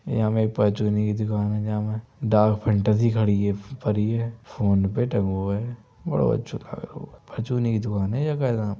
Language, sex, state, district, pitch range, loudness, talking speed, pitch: Hindi, male, Uttar Pradesh, Budaun, 105-115 Hz, -24 LUFS, 155 wpm, 105 Hz